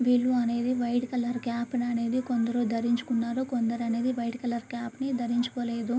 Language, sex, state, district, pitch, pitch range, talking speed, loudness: Telugu, female, Andhra Pradesh, Guntur, 240 Hz, 235-245 Hz, 140 wpm, -29 LUFS